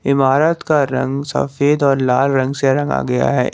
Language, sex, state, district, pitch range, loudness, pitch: Hindi, male, Jharkhand, Garhwa, 130-140 Hz, -16 LUFS, 135 Hz